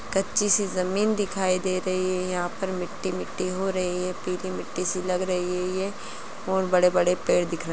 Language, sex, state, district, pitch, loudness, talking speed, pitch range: Hindi, female, Bihar, Gaya, 185 Hz, -26 LUFS, 200 wpm, 180-190 Hz